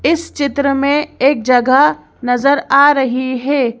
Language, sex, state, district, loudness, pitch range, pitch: Hindi, female, Madhya Pradesh, Bhopal, -13 LUFS, 255-285 Hz, 275 Hz